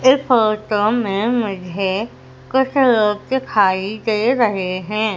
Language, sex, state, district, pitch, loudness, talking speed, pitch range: Hindi, female, Madhya Pradesh, Umaria, 215 Hz, -18 LUFS, 115 wpm, 195-240 Hz